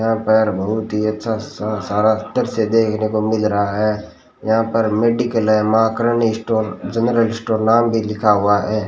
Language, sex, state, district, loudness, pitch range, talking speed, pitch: Hindi, male, Rajasthan, Bikaner, -17 LUFS, 105-115 Hz, 170 wpm, 110 Hz